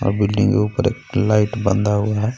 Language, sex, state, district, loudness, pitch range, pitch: Hindi, male, Jharkhand, Garhwa, -18 LUFS, 105-115 Hz, 105 Hz